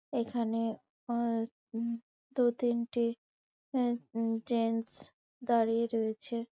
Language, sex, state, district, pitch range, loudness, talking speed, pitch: Bengali, female, West Bengal, Malda, 230-240 Hz, -33 LUFS, 90 wpm, 235 Hz